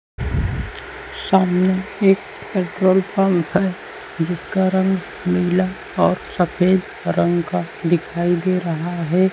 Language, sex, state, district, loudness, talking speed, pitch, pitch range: Hindi, male, Chhattisgarh, Raipur, -19 LUFS, 105 wpm, 185 Hz, 175-190 Hz